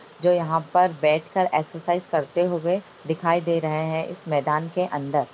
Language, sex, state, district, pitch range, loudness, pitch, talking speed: Hindi, female, Bihar, Begusarai, 155-175 Hz, -24 LUFS, 165 Hz, 180 wpm